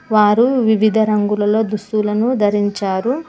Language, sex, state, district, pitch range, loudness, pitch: Telugu, female, Telangana, Mahabubabad, 205-220 Hz, -16 LUFS, 215 Hz